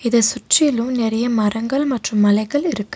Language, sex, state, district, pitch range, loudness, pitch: Tamil, female, Tamil Nadu, Nilgiris, 220-265 Hz, -18 LUFS, 235 Hz